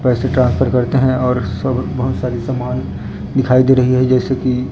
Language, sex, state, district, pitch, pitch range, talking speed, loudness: Hindi, male, Chhattisgarh, Raipur, 125 Hz, 125-130 Hz, 190 wpm, -16 LUFS